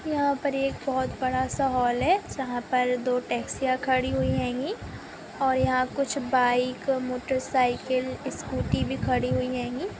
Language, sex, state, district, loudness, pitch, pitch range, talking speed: Hindi, female, Chhattisgarh, Bilaspur, -27 LUFS, 255 Hz, 250-270 Hz, 145 wpm